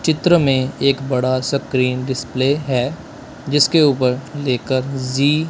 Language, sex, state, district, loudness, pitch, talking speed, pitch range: Hindi, male, Punjab, Kapurthala, -18 LUFS, 135 Hz, 120 wpm, 130-145 Hz